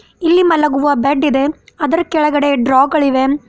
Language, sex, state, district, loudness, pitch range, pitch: Kannada, female, Karnataka, Bidar, -14 LUFS, 275-310 Hz, 290 Hz